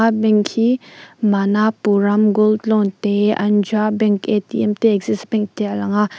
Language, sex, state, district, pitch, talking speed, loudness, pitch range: Mizo, female, Mizoram, Aizawl, 210 Hz, 155 wpm, -17 LUFS, 205-215 Hz